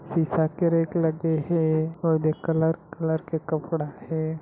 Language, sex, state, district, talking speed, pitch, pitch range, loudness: Chhattisgarhi, male, Chhattisgarh, Raigarh, 165 wpm, 160 Hz, 155-165 Hz, -25 LUFS